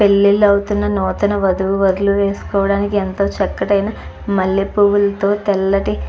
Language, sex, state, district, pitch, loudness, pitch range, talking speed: Telugu, female, Andhra Pradesh, Chittoor, 200 Hz, -16 LUFS, 195-205 Hz, 110 wpm